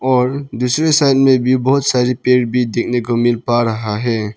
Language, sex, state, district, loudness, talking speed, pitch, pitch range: Hindi, male, Arunachal Pradesh, Lower Dibang Valley, -15 LUFS, 205 wpm, 125 Hz, 120-130 Hz